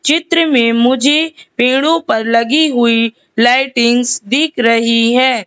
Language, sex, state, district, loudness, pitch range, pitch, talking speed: Hindi, female, Madhya Pradesh, Katni, -12 LUFS, 230-295 Hz, 250 Hz, 120 wpm